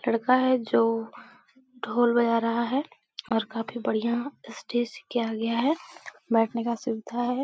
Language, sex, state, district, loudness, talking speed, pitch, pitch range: Hindi, female, Bihar, Supaul, -27 LUFS, 160 wpm, 235 Hz, 230-255 Hz